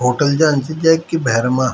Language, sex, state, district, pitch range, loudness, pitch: Garhwali, male, Uttarakhand, Tehri Garhwal, 130-160 Hz, -16 LUFS, 145 Hz